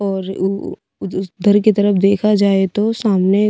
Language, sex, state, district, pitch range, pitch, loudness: Hindi, female, Bihar, Kaimur, 195-210 Hz, 200 Hz, -16 LUFS